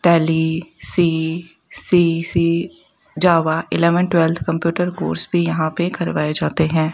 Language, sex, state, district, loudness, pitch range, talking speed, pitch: Hindi, female, Rajasthan, Bikaner, -18 LUFS, 160-175 Hz, 110 wpm, 165 Hz